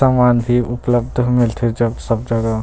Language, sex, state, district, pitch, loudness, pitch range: Chhattisgarhi, male, Chhattisgarh, Rajnandgaon, 120 Hz, -17 LUFS, 115-125 Hz